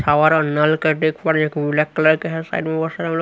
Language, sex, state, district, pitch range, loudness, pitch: Hindi, male, Haryana, Rohtak, 150-160 Hz, -18 LUFS, 155 Hz